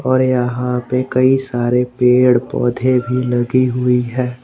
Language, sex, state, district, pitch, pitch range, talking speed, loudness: Hindi, male, Jharkhand, Garhwa, 125 Hz, 125-130 Hz, 150 wpm, -15 LUFS